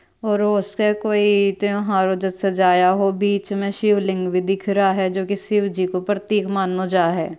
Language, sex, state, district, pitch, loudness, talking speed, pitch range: Marwari, female, Rajasthan, Churu, 195 Hz, -19 LUFS, 205 wpm, 190-205 Hz